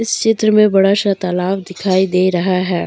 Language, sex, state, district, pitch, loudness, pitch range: Hindi, female, Jharkhand, Deoghar, 190 Hz, -14 LUFS, 185-205 Hz